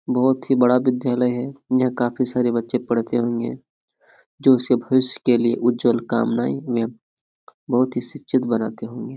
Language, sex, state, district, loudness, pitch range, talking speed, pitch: Hindi, male, Jharkhand, Jamtara, -21 LUFS, 120-130 Hz, 165 wpm, 125 Hz